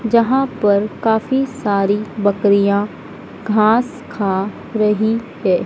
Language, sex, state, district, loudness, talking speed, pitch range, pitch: Hindi, female, Madhya Pradesh, Dhar, -17 LUFS, 95 wpm, 200-230 Hz, 215 Hz